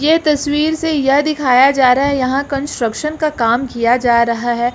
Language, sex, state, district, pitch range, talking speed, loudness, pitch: Hindi, female, Uttar Pradesh, Lucknow, 240-295 Hz, 200 wpm, -14 LUFS, 275 Hz